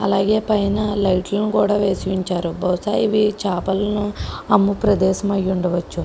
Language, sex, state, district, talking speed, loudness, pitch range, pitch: Telugu, female, Andhra Pradesh, Krishna, 140 wpm, -19 LUFS, 185-205 Hz, 200 Hz